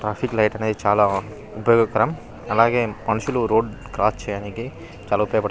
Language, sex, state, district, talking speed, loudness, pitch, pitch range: Telugu, male, Telangana, Nalgonda, 140 wpm, -21 LUFS, 110 Hz, 105-115 Hz